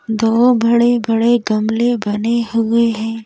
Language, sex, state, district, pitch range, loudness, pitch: Hindi, female, Madhya Pradesh, Bhopal, 225-235 Hz, -15 LUFS, 230 Hz